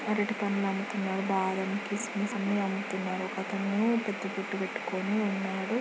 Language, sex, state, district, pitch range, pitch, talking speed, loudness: Telugu, female, Andhra Pradesh, Guntur, 195-205 Hz, 200 Hz, 125 wpm, -31 LUFS